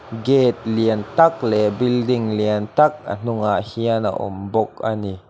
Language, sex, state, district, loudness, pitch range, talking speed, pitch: Mizo, male, Mizoram, Aizawl, -19 LUFS, 105-125 Hz, 160 wpm, 110 Hz